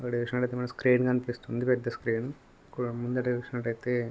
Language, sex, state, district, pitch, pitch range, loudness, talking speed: Telugu, male, Telangana, Nalgonda, 125 Hz, 120-125 Hz, -30 LUFS, 175 wpm